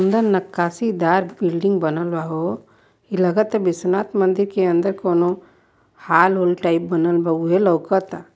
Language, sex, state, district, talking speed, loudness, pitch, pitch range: Bhojpuri, female, Uttar Pradesh, Varanasi, 145 wpm, -19 LUFS, 180 Hz, 170-195 Hz